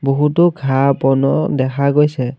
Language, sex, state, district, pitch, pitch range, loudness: Assamese, male, Assam, Kamrup Metropolitan, 140 Hz, 135-150 Hz, -15 LUFS